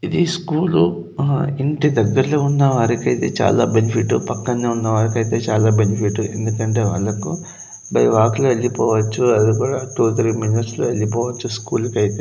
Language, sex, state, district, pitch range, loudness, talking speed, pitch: Telugu, male, Telangana, Nalgonda, 110-125 Hz, -18 LUFS, 135 wpm, 115 Hz